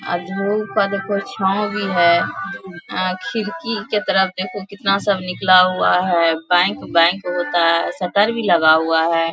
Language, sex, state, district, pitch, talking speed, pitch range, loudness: Hindi, female, Bihar, Bhagalpur, 185 Hz, 165 wpm, 175-200 Hz, -18 LUFS